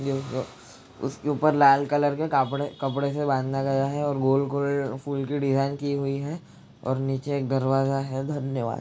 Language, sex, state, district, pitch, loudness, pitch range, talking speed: Hindi, male, Bihar, Jahanabad, 140 Hz, -25 LUFS, 135-145 Hz, 185 wpm